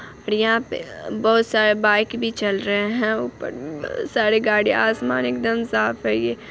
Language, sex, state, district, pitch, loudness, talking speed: Hindi, female, Bihar, Saharsa, 215 Hz, -20 LUFS, 185 wpm